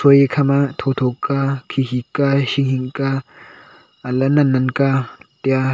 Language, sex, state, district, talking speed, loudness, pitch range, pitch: Wancho, male, Arunachal Pradesh, Longding, 135 wpm, -18 LUFS, 130-140 Hz, 135 Hz